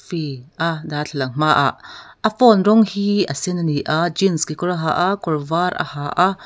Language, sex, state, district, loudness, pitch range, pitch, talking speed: Mizo, female, Mizoram, Aizawl, -19 LUFS, 155-195 Hz, 170 Hz, 205 wpm